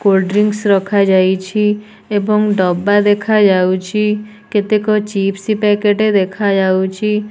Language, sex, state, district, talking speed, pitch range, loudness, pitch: Odia, female, Odisha, Nuapada, 80 wpm, 195-210 Hz, -14 LUFS, 205 Hz